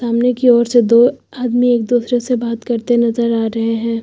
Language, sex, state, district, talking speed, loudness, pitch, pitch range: Hindi, female, Uttar Pradesh, Lucknow, 225 wpm, -15 LUFS, 235 Hz, 230-245 Hz